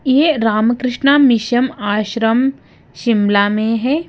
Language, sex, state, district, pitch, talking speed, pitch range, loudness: Hindi, female, Himachal Pradesh, Shimla, 235 Hz, 100 wpm, 215-265 Hz, -15 LUFS